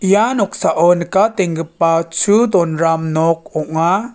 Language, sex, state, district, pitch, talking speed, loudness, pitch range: Garo, male, Meghalaya, West Garo Hills, 170 Hz, 100 wpm, -15 LUFS, 165-200 Hz